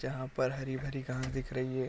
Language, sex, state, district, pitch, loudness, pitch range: Hindi, male, Chhattisgarh, Korba, 130 Hz, -36 LUFS, 130-135 Hz